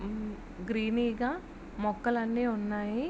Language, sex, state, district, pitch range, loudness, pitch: Telugu, female, Andhra Pradesh, Srikakulam, 210-240 Hz, -32 LUFS, 225 Hz